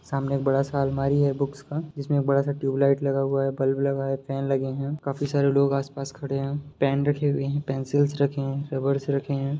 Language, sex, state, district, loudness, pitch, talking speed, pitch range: Hindi, male, Bihar, Jahanabad, -25 LUFS, 140 Hz, 225 wpm, 135-140 Hz